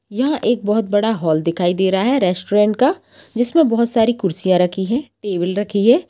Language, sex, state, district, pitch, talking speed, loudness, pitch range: Hindi, female, Bihar, Purnia, 210 Hz, 185 wpm, -17 LUFS, 190-240 Hz